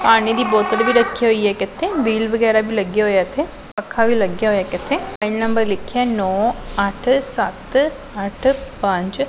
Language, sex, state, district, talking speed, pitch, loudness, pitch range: Punjabi, female, Punjab, Pathankot, 195 wpm, 225 Hz, -18 LUFS, 200-245 Hz